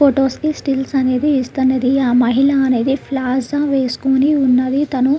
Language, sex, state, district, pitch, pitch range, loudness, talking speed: Telugu, female, Andhra Pradesh, Krishna, 265 Hz, 255-280 Hz, -16 LUFS, 150 wpm